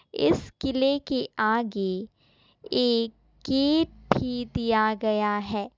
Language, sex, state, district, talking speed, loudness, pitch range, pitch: Hindi, female, Assam, Kamrup Metropolitan, 105 wpm, -26 LUFS, 215-270 Hz, 230 Hz